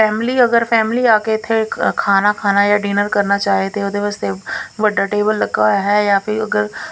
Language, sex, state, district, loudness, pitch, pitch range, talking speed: Punjabi, female, Punjab, Pathankot, -16 LUFS, 205 Hz, 200-220 Hz, 210 wpm